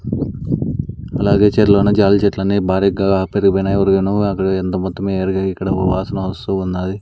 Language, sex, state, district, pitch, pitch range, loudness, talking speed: Telugu, male, Andhra Pradesh, Sri Satya Sai, 100 Hz, 95-100 Hz, -16 LUFS, 110 wpm